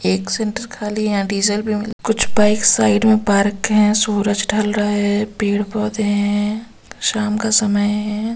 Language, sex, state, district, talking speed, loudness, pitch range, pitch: Hindi, female, Bihar, Katihar, 180 wpm, -17 LUFS, 205-215 Hz, 210 Hz